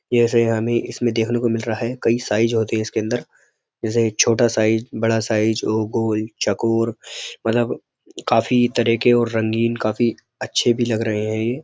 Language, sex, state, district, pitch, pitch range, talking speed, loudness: Hindi, male, Uttar Pradesh, Jyotiba Phule Nagar, 115 Hz, 110-120 Hz, 180 wpm, -20 LUFS